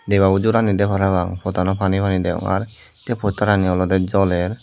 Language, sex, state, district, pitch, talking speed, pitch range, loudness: Chakma, male, Tripura, Dhalai, 95 Hz, 170 wpm, 90-100 Hz, -19 LUFS